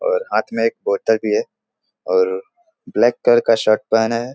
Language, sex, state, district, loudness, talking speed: Hindi, male, Bihar, Jahanabad, -18 LUFS, 195 wpm